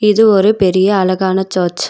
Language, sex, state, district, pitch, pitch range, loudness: Tamil, female, Tamil Nadu, Nilgiris, 190 Hz, 185-210 Hz, -12 LUFS